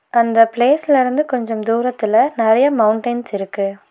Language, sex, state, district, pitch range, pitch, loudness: Tamil, female, Tamil Nadu, Nilgiris, 220-250 Hz, 230 Hz, -16 LUFS